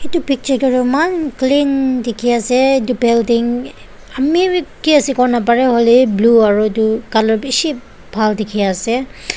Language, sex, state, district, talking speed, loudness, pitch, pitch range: Nagamese, female, Nagaland, Dimapur, 135 wpm, -14 LUFS, 250 Hz, 230-270 Hz